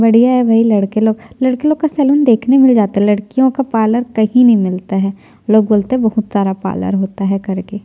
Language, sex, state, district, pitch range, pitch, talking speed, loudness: Hindi, female, Chhattisgarh, Jashpur, 200-250 Hz, 220 Hz, 215 wpm, -13 LUFS